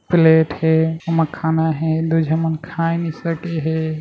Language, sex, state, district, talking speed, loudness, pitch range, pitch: Chhattisgarhi, male, Chhattisgarh, Raigarh, 105 wpm, -18 LUFS, 160-165 Hz, 160 Hz